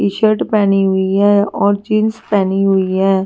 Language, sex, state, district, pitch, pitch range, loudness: Hindi, female, Delhi, New Delhi, 200 Hz, 195-210 Hz, -14 LUFS